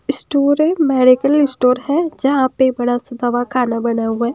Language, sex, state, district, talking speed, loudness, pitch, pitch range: Hindi, female, Himachal Pradesh, Shimla, 180 wpm, -16 LUFS, 255 Hz, 245-280 Hz